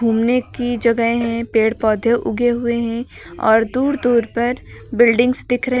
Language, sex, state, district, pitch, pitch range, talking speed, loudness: Hindi, female, Uttar Pradesh, Lucknow, 235 Hz, 230-245 Hz, 175 wpm, -17 LUFS